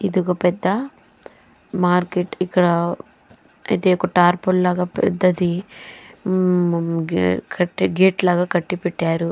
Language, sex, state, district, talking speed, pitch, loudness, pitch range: Telugu, female, Andhra Pradesh, Chittoor, 105 wpm, 180 Hz, -19 LUFS, 175-185 Hz